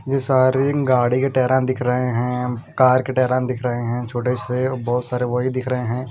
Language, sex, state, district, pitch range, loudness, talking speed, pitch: Hindi, male, Punjab, Kapurthala, 125-130 Hz, -20 LUFS, 225 wpm, 125 Hz